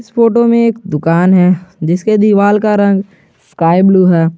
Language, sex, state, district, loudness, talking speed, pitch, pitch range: Hindi, male, Jharkhand, Garhwa, -11 LUFS, 180 wpm, 195 Hz, 175-210 Hz